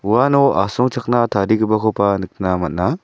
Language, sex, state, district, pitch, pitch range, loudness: Garo, male, Meghalaya, South Garo Hills, 110 Hz, 100-125 Hz, -17 LUFS